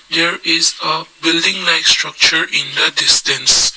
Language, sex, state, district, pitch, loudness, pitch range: English, male, Assam, Kamrup Metropolitan, 165 Hz, -12 LUFS, 160-165 Hz